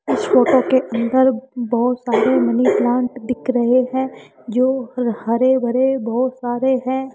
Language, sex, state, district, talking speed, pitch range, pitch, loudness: Hindi, female, Rajasthan, Jaipur, 145 wpm, 240-260 Hz, 250 Hz, -18 LUFS